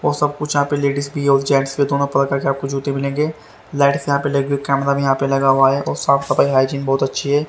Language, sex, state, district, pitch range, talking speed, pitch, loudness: Hindi, male, Haryana, Rohtak, 135-140 Hz, 270 wpm, 140 Hz, -17 LUFS